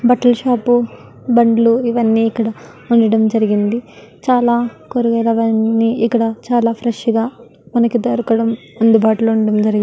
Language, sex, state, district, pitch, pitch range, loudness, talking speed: Telugu, female, Andhra Pradesh, Guntur, 230 Hz, 225-240 Hz, -15 LUFS, 115 wpm